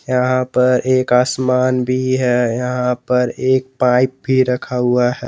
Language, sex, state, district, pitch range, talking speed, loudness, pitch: Hindi, male, Jharkhand, Garhwa, 125-130 Hz, 160 wpm, -16 LUFS, 125 Hz